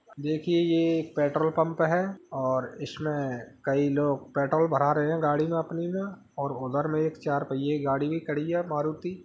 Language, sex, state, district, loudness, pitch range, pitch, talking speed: Hindi, male, Uttar Pradesh, Hamirpur, -28 LUFS, 140-165 Hz, 150 Hz, 190 wpm